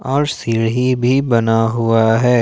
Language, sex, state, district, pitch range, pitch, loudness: Hindi, male, Jharkhand, Ranchi, 115-130 Hz, 120 Hz, -15 LUFS